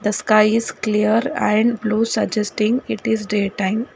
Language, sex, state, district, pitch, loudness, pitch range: English, female, Karnataka, Bangalore, 215 Hz, -19 LUFS, 210-225 Hz